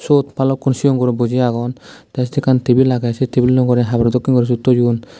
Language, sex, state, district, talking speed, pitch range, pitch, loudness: Chakma, male, Tripura, Dhalai, 220 wpm, 120-130 Hz, 125 Hz, -15 LUFS